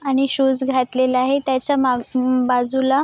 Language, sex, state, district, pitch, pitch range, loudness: Marathi, female, Maharashtra, Chandrapur, 260 Hz, 255-270 Hz, -18 LUFS